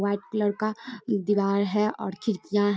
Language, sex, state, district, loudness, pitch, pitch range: Hindi, female, Bihar, Darbhanga, -27 LUFS, 205 Hz, 200-215 Hz